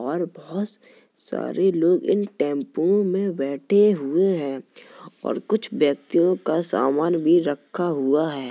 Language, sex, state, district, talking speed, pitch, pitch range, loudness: Hindi, female, Uttar Pradesh, Jalaun, 140 wpm, 170 Hz, 145-195 Hz, -22 LUFS